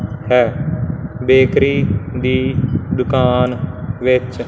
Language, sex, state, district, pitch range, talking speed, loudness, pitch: Punjabi, male, Punjab, Fazilka, 125-130 Hz, 65 wpm, -16 LUFS, 125 Hz